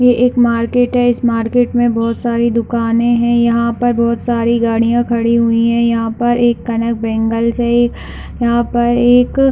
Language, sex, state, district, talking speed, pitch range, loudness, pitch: Hindi, female, Chhattisgarh, Raigarh, 175 wpm, 230-240 Hz, -14 LUFS, 235 Hz